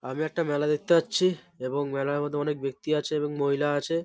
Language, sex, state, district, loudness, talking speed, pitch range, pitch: Bengali, male, West Bengal, Malda, -27 LUFS, 220 wpm, 140-155 Hz, 145 Hz